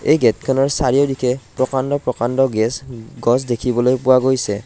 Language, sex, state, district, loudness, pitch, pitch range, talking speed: Assamese, male, Assam, Kamrup Metropolitan, -17 LUFS, 130 Hz, 120-135 Hz, 130 wpm